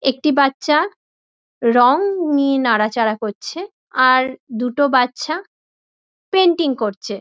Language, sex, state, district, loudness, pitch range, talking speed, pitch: Bengali, female, West Bengal, Dakshin Dinajpur, -17 LUFS, 240-310 Hz, 90 wpm, 270 Hz